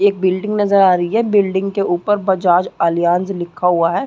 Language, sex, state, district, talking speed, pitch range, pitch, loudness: Hindi, female, Chhattisgarh, Sarguja, 205 wpm, 175-200 Hz, 190 Hz, -16 LUFS